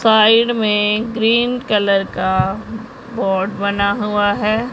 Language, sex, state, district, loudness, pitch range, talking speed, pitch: Hindi, male, Punjab, Pathankot, -16 LUFS, 200-230 Hz, 115 wpm, 215 Hz